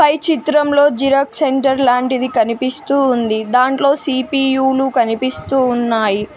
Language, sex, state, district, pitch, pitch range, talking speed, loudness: Telugu, female, Telangana, Mahabubabad, 265 Hz, 245-275 Hz, 115 wpm, -15 LUFS